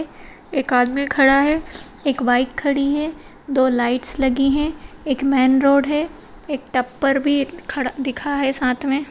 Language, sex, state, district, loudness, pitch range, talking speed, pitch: Hindi, female, Bihar, Madhepura, -18 LUFS, 260-290 Hz, 160 wpm, 275 Hz